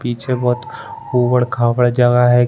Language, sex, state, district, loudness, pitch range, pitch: Hindi, male, Chhattisgarh, Bilaspur, -16 LUFS, 120-125 Hz, 125 Hz